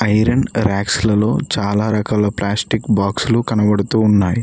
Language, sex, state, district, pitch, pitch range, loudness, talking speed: Telugu, male, Telangana, Mahabubabad, 105 Hz, 100-110 Hz, -16 LUFS, 120 wpm